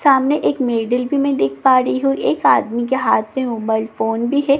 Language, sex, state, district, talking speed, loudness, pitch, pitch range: Hindi, female, Bihar, Katihar, 250 wpm, -17 LUFS, 255 Hz, 225-275 Hz